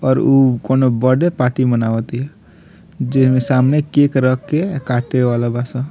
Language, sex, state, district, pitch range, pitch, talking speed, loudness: Bhojpuri, male, Bihar, Muzaffarpur, 125-135 Hz, 130 Hz, 175 wpm, -16 LUFS